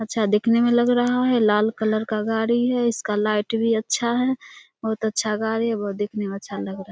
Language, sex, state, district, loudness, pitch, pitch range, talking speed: Hindi, female, Bihar, Samastipur, -22 LUFS, 220 Hz, 210-235 Hz, 235 wpm